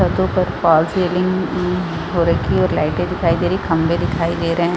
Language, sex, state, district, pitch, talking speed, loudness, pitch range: Hindi, female, Chhattisgarh, Raigarh, 170 Hz, 240 wpm, -18 LUFS, 165-180 Hz